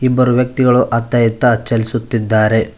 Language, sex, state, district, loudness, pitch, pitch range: Kannada, male, Karnataka, Koppal, -14 LUFS, 115 Hz, 110-125 Hz